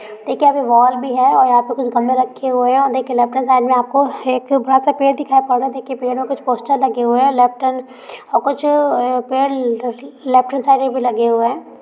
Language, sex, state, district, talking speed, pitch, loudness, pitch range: Hindi, female, Bihar, Begusarai, 240 wpm, 255 Hz, -15 LUFS, 245-270 Hz